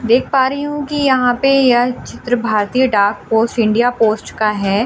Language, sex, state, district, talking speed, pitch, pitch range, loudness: Hindi, female, Delhi, New Delhi, 195 wpm, 240 Hz, 220-260 Hz, -15 LUFS